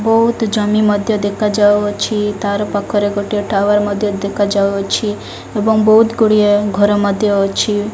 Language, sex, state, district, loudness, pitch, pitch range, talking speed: Odia, female, Odisha, Malkangiri, -14 LUFS, 205 Hz, 205-215 Hz, 120 wpm